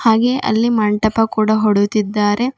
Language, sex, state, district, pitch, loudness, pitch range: Kannada, female, Karnataka, Bidar, 220 Hz, -16 LUFS, 210-225 Hz